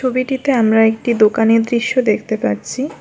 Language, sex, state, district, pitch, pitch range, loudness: Bengali, female, West Bengal, Alipurduar, 230 Hz, 220-255 Hz, -15 LUFS